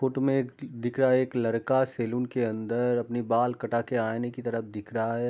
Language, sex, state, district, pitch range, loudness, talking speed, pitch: Hindi, male, Bihar, Darbhanga, 115-130 Hz, -28 LUFS, 240 wpm, 120 Hz